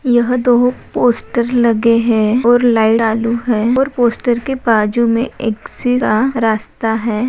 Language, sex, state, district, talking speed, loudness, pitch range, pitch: Hindi, female, Maharashtra, Pune, 150 wpm, -14 LUFS, 225-245 Hz, 235 Hz